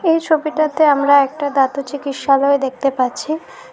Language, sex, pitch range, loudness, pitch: Bengali, female, 275-310 Hz, -16 LUFS, 285 Hz